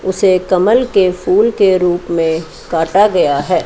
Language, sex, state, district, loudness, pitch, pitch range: Hindi, female, Chandigarh, Chandigarh, -13 LUFS, 185 Hz, 170-200 Hz